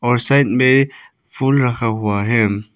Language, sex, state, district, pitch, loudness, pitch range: Hindi, male, Arunachal Pradesh, Papum Pare, 120 Hz, -16 LUFS, 110-135 Hz